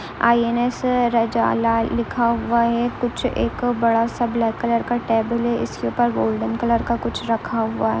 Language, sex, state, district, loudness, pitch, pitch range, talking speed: Hindi, female, Andhra Pradesh, Visakhapatnam, -20 LUFS, 235 Hz, 225-235 Hz, 180 wpm